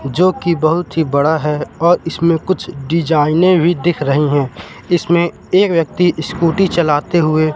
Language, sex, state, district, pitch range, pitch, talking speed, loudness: Hindi, male, Madhya Pradesh, Katni, 150-175 Hz, 165 Hz, 150 wpm, -15 LUFS